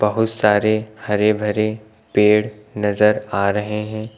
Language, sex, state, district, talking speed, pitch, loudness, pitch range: Hindi, male, Uttar Pradesh, Lucknow, 130 wpm, 105 Hz, -18 LUFS, 105-110 Hz